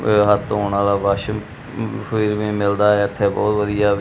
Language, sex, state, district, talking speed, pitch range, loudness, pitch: Punjabi, male, Punjab, Kapurthala, 150 wpm, 100-105 Hz, -19 LUFS, 105 Hz